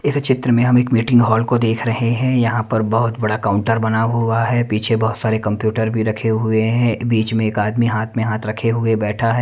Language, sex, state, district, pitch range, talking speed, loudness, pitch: Hindi, male, Delhi, New Delhi, 110-120 Hz, 240 wpm, -17 LUFS, 115 Hz